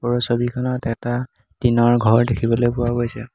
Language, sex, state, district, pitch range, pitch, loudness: Assamese, male, Assam, Hailakandi, 115-120 Hz, 120 Hz, -19 LUFS